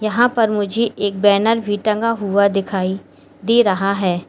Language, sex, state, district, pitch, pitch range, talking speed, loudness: Hindi, female, Uttar Pradesh, Lalitpur, 205 Hz, 195-225 Hz, 170 wpm, -17 LUFS